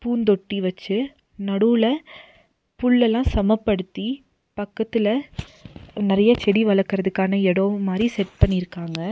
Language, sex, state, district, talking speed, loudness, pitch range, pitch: Tamil, female, Tamil Nadu, Nilgiris, 85 wpm, -21 LUFS, 195-230 Hz, 205 Hz